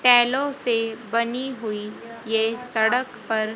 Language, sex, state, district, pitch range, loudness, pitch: Hindi, female, Haryana, Rohtak, 220-250 Hz, -23 LUFS, 230 Hz